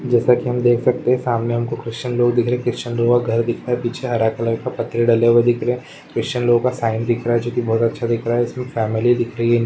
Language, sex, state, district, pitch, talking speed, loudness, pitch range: Hindi, female, Uttarakhand, Uttarkashi, 120 Hz, 290 wpm, -19 LUFS, 115-120 Hz